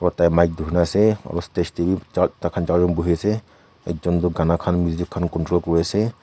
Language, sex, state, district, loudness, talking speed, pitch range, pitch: Nagamese, female, Nagaland, Kohima, -21 LUFS, 230 wpm, 85-90 Hz, 85 Hz